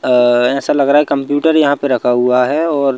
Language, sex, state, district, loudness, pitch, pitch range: Hindi, male, Madhya Pradesh, Bhopal, -13 LUFS, 140 Hz, 125-145 Hz